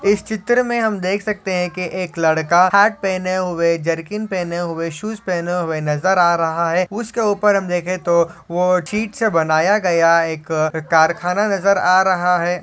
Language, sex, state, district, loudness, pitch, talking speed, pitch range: Hindi, male, Maharashtra, Solapur, -17 LUFS, 180 Hz, 195 wpm, 170-200 Hz